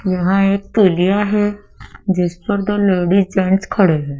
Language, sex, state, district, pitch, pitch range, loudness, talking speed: Hindi, female, Madhya Pradesh, Dhar, 195 Hz, 185-205 Hz, -16 LUFS, 155 wpm